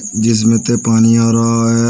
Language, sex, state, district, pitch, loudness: Hindi, male, Uttar Pradesh, Shamli, 115 Hz, -12 LUFS